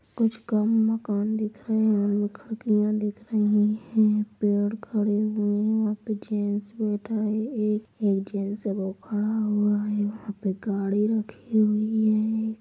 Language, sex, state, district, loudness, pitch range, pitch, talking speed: Hindi, female, Bihar, Saharsa, -26 LUFS, 205-220 Hz, 210 Hz, 145 wpm